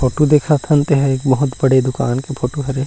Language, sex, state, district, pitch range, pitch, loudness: Chhattisgarhi, male, Chhattisgarh, Rajnandgaon, 130-145 Hz, 135 Hz, -16 LUFS